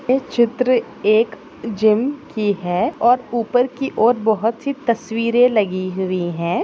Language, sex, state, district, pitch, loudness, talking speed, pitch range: Hindi, female, Maharashtra, Nagpur, 230 Hz, -18 LUFS, 145 wpm, 210-250 Hz